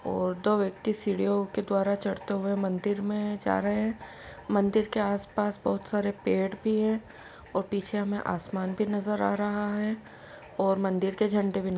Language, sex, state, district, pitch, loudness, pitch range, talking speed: Hindi, female, Uttar Pradesh, Etah, 205 Hz, -29 LUFS, 195-210 Hz, 175 wpm